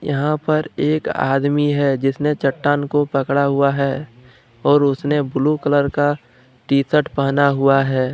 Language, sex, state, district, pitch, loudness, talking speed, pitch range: Hindi, male, Jharkhand, Deoghar, 140 Hz, -18 LUFS, 155 wpm, 135-145 Hz